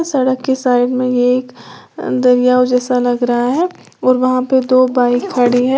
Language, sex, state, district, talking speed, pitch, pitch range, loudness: Hindi, female, Uttar Pradesh, Lalitpur, 185 wpm, 250 Hz, 245-255 Hz, -14 LUFS